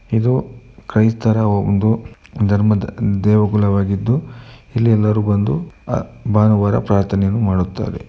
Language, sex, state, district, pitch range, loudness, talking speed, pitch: Kannada, male, Karnataka, Mysore, 100-115 Hz, -17 LUFS, 80 wpm, 105 Hz